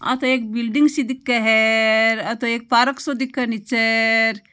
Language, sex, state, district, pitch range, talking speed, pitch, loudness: Marwari, female, Rajasthan, Nagaur, 225-255 Hz, 200 wpm, 235 Hz, -18 LUFS